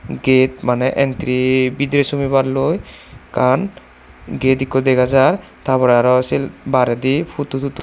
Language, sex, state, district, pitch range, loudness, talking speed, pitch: Chakma, male, Tripura, Dhalai, 125-135 Hz, -16 LUFS, 130 wpm, 130 Hz